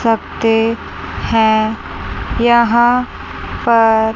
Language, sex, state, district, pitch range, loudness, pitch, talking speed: Hindi, female, Chandigarh, Chandigarh, 220-235 Hz, -14 LUFS, 225 Hz, 60 wpm